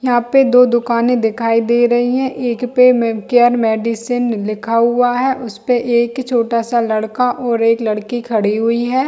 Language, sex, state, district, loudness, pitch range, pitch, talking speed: Hindi, female, Chhattisgarh, Bilaspur, -15 LUFS, 230-245 Hz, 240 Hz, 180 wpm